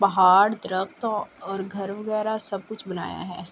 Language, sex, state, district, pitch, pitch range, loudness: Urdu, female, Andhra Pradesh, Anantapur, 200 Hz, 185-215 Hz, -24 LUFS